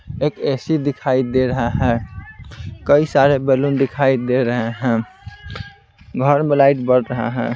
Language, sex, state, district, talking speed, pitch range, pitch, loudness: Hindi, male, Bihar, Patna, 150 wpm, 120-140 Hz, 130 Hz, -17 LUFS